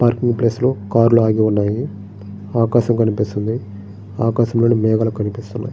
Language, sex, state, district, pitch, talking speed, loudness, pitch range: Telugu, male, Andhra Pradesh, Srikakulam, 115 Hz, 125 wpm, -17 LUFS, 105-120 Hz